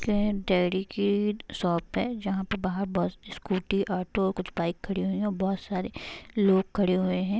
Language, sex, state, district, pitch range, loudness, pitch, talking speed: Hindi, female, Bihar, Sitamarhi, 185-205 Hz, -28 LUFS, 190 Hz, 185 wpm